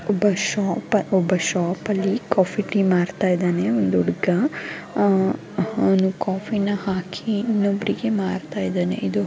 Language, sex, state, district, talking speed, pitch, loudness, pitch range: Kannada, female, Karnataka, Mysore, 125 wpm, 190 Hz, -22 LUFS, 180-205 Hz